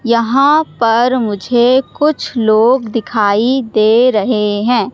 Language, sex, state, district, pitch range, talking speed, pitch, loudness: Hindi, female, Madhya Pradesh, Katni, 220-255 Hz, 110 wpm, 235 Hz, -12 LUFS